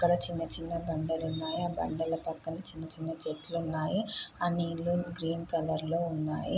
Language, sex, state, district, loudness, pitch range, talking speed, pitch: Telugu, female, Andhra Pradesh, Guntur, -34 LUFS, 160-170 Hz, 175 wpm, 165 Hz